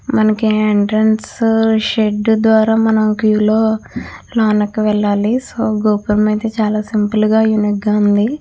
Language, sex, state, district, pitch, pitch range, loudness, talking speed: Telugu, female, Andhra Pradesh, Chittoor, 215 Hz, 210-220 Hz, -14 LUFS, 130 wpm